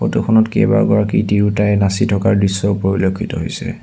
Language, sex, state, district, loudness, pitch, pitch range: Assamese, male, Assam, Sonitpur, -15 LUFS, 100 Hz, 95-105 Hz